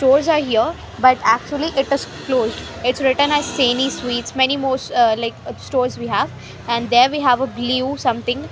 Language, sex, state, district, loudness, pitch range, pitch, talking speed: English, female, Haryana, Rohtak, -18 LUFS, 245-280 Hz, 260 Hz, 190 wpm